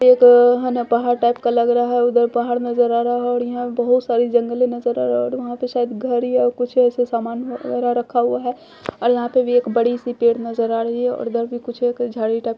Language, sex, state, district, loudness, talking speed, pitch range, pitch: Hindi, female, Bihar, Purnia, -18 LUFS, 255 wpm, 235-245 Hz, 240 Hz